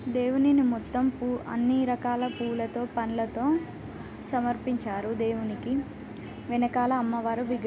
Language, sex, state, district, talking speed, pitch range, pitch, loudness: Telugu, female, Telangana, Nalgonda, 85 wpm, 230-250 Hz, 245 Hz, -28 LUFS